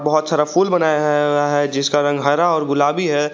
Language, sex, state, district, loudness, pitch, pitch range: Hindi, male, Jharkhand, Garhwa, -17 LUFS, 150 Hz, 145-155 Hz